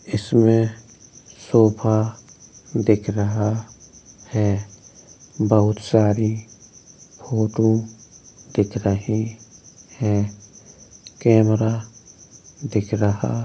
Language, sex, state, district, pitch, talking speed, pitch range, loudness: Hindi, male, Uttar Pradesh, Hamirpur, 110 Hz, 65 wpm, 105-115 Hz, -21 LUFS